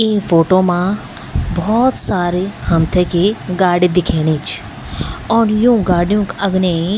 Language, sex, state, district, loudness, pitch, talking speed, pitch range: Garhwali, female, Uttarakhand, Tehri Garhwal, -15 LUFS, 185 Hz, 135 wpm, 175-205 Hz